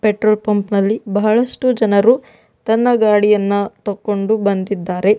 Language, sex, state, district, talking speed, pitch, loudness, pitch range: Kannada, female, Karnataka, Bidar, 105 wpm, 210 Hz, -16 LUFS, 200-220 Hz